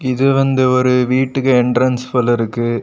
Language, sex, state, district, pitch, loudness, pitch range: Tamil, male, Tamil Nadu, Kanyakumari, 125 Hz, -15 LUFS, 125-130 Hz